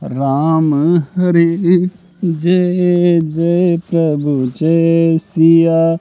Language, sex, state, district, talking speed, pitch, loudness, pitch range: Hindi, male, Madhya Pradesh, Katni, 70 wpm, 165 Hz, -13 LUFS, 160-175 Hz